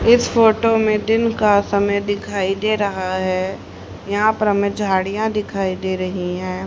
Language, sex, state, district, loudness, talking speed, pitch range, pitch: Hindi, female, Haryana, Charkhi Dadri, -18 LUFS, 160 wpm, 190-215 Hz, 200 Hz